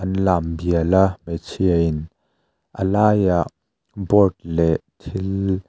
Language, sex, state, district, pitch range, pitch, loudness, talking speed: Mizo, male, Mizoram, Aizawl, 85-95 Hz, 95 Hz, -20 LUFS, 105 wpm